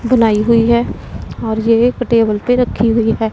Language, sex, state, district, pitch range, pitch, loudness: Hindi, female, Punjab, Pathankot, 220-240 Hz, 230 Hz, -14 LUFS